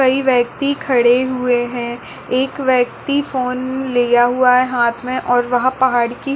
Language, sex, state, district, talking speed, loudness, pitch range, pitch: Hindi, female, Chhattisgarh, Balrampur, 170 wpm, -16 LUFS, 245-260 Hz, 250 Hz